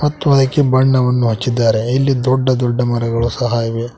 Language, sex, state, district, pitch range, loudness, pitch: Kannada, male, Karnataka, Koppal, 120-130 Hz, -15 LUFS, 125 Hz